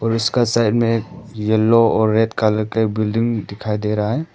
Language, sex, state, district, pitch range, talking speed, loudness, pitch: Hindi, male, Arunachal Pradesh, Papum Pare, 110-115 Hz, 205 wpm, -18 LUFS, 110 Hz